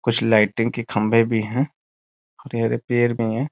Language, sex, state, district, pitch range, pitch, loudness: Hindi, male, Bihar, Muzaffarpur, 110-120 Hz, 115 Hz, -21 LUFS